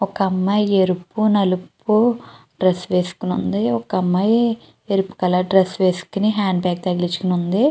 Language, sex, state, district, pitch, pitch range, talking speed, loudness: Telugu, female, Andhra Pradesh, Chittoor, 190 Hz, 180-205 Hz, 125 wpm, -19 LUFS